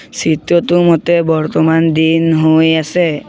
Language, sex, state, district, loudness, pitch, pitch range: Assamese, male, Assam, Sonitpur, -12 LUFS, 160 Hz, 160-170 Hz